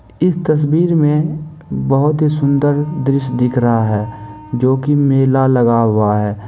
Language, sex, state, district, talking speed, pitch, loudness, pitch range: Maithili, male, Bihar, Supaul, 150 wpm, 135 Hz, -14 LUFS, 115-150 Hz